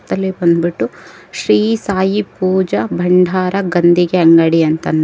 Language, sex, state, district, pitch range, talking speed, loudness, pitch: Kannada, female, Karnataka, Bangalore, 170-190 Hz, 105 wpm, -14 LUFS, 180 Hz